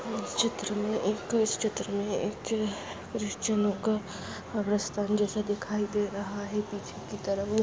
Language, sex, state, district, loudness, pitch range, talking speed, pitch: Hindi, female, Maharashtra, Solapur, -31 LUFS, 205-220 Hz, 150 wpm, 210 Hz